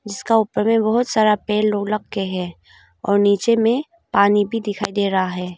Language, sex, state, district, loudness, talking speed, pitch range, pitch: Hindi, female, Arunachal Pradesh, Longding, -19 LUFS, 195 wpm, 200-225 Hz, 210 Hz